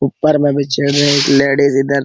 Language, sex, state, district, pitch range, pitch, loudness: Hindi, male, Jharkhand, Sahebganj, 140-145 Hz, 140 Hz, -13 LUFS